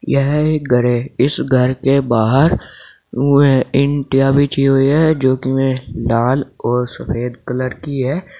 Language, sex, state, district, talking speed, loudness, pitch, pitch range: Hindi, male, Uttar Pradesh, Saharanpur, 165 wpm, -15 LUFS, 135 Hz, 125-140 Hz